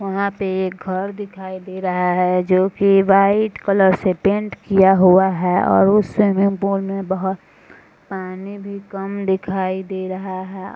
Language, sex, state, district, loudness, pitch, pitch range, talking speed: Hindi, female, Bihar, Purnia, -18 LUFS, 190 Hz, 185-200 Hz, 160 wpm